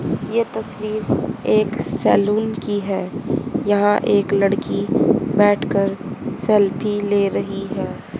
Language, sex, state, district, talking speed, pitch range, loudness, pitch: Hindi, female, Haryana, Rohtak, 100 wpm, 200-215 Hz, -19 LUFS, 205 Hz